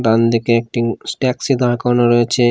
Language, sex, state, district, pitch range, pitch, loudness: Bengali, male, Odisha, Khordha, 115-125 Hz, 120 Hz, -16 LUFS